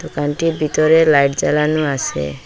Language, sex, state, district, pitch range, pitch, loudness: Bengali, female, Assam, Hailakandi, 140-155 Hz, 150 Hz, -16 LUFS